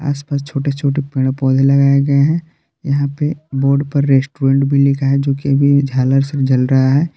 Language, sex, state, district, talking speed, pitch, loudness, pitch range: Hindi, male, Jharkhand, Palamu, 200 wpm, 140 Hz, -15 LUFS, 135-140 Hz